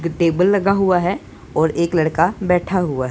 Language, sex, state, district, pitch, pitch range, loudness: Hindi, male, Punjab, Pathankot, 175 Hz, 165-185 Hz, -18 LUFS